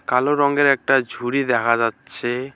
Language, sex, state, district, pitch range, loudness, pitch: Bengali, male, West Bengal, Alipurduar, 120-140 Hz, -19 LUFS, 125 Hz